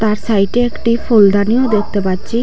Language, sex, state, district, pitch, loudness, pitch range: Bengali, female, Assam, Hailakandi, 215 Hz, -14 LUFS, 205-235 Hz